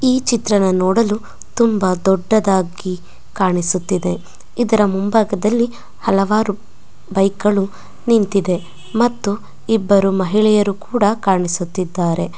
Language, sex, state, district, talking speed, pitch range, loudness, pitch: Kannada, female, Karnataka, Belgaum, 80 wpm, 185-220 Hz, -17 LUFS, 200 Hz